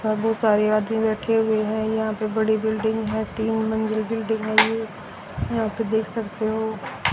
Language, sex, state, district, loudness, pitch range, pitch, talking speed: Hindi, female, Haryana, Rohtak, -23 LUFS, 215-220 Hz, 220 Hz, 175 wpm